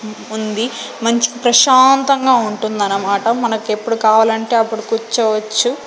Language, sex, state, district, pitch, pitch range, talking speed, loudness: Telugu, female, Andhra Pradesh, Sri Satya Sai, 225 Hz, 215-240 Hz, 80 wpm, -14 LUFS